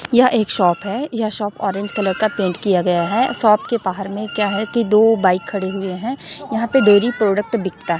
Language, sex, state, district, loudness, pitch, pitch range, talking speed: Hindi, female, Chhattisgarh, Raipur, -17 LUFS, 210 Hz, 195-230 Hz, 235 wpm